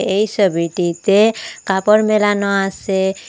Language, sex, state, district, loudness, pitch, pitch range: Bengali, female, Assam, Hailakandi, -16 LUFS, 195 Hz, 190-210 Hz